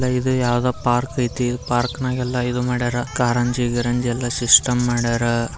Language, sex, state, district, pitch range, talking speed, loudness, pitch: Kannada, male, Karnataka, Bijapur, 120-125 Hz, 140 wpm, -19 LUFS, 120 Hz